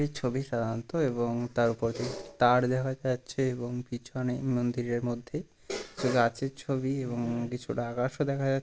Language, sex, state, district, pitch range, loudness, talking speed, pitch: Bengali, male, West Bengal, Purulia, 120-130 Hz, -31 LUFS, 140 wpm, 125 Hz